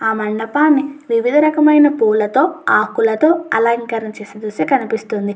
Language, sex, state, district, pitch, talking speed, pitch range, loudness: Telugu, female, Andhra Pradesh, Chittoor, 230 Hz, 100 wpm, 220-290 Hz, -15 LUFS